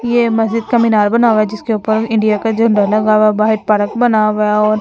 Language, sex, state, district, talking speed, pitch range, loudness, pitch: Hindi, female, Delhi, New Delhi, 250 wpm, 215-230 Hz, -13 LUFS, 215 Hz